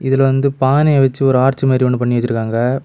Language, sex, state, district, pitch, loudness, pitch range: Tamil, male, Tamil Nadu, Kanyakumari, 130 Hz, -14 LUFS, 125-135 Hz